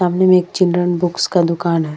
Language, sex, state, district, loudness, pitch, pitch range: Hindi, female, Bihar, Vaishali, -15 LUFS, 175 Hz, 170-180 Hz